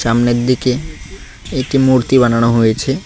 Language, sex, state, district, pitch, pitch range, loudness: Bengali, male, West Bengal, Cooch Behar, 125 Hz, 115-135 Hz, -14 LUFS